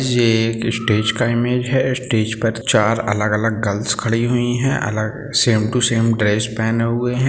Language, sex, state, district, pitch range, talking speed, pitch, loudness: Hindi, male, Bihar, Sitamarhi, 110-125 Hz, 180 wpm, 115 Hz, -18 LUFS